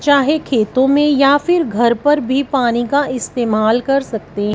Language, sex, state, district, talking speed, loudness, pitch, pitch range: Hindi, female, Punjab, Fazilka, 170 wpm, -15 LUFS, 265 Hz, 235-285 Hz